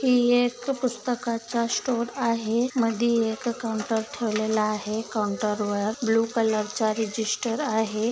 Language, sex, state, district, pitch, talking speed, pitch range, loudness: Marathi, female, Maharashtra, Solapur, 225 Hz, 125 wpm, 220-240 Hz, -25 LUFS